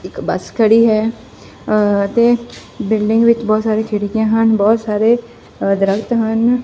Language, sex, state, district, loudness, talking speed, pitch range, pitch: Punjabi, female, Punjab, Fazilka, -15 LUFS, 155 wpm, 210-230 Hz, 220 Hz